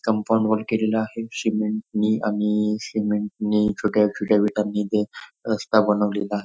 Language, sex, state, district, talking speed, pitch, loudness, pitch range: Marathi, male, Maharashtra, Nagpur, 130 wpm, 105 Hz, -22 LUFS, 105-110 Hz